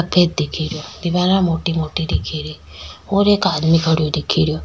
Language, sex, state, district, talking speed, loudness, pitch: Rajasthani, female, Rajasthan, Nagaur, 195 wpm, -18 LUFS, 155 Hz